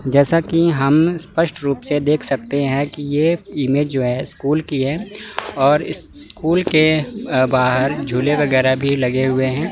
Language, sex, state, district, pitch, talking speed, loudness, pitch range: Hindi, male, Chandigarh, Chandigarh, 145 Hz, 165 wpm, -18 LUFS, 135-155 Hz